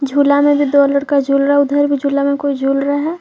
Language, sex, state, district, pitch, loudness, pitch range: Hindi, female, Jharkhand, Deoghar, 285 Hz, -14 LUFS, 280-285 Hz